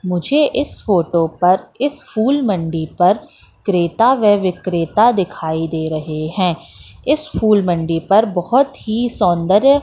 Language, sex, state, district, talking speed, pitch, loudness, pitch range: Hindi, female, Madhya Pradesh, Katni, 135 wpm, 190 Hz, -16 LUFS, 170-235 Hz